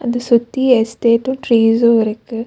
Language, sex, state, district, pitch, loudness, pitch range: Tamil, female, Tamil Nadu, Nilgiris, 235 Hz, -14 LUFS, 230-245 Hz